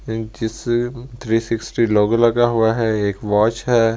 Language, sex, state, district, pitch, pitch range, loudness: Hindi, male, Delhi, New Delhi, 115 Hz, 110-120 Hz, -18 LUFS